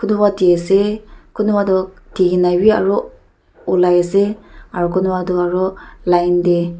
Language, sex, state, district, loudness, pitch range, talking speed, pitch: Nagamese, female, Nagaland, Dimapur, -16 LUFS, 180-205 Hz, 140 wpm, 185 Hz